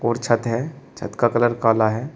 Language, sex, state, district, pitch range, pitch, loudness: Hindi, male, Uttar Pradesh, Shamli, 115-120 Hz, 120 Hz, -20 LUFS